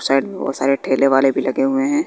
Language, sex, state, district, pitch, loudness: Hindi, female, Bihar, West Champaran, 135 Hz, -17 LUFS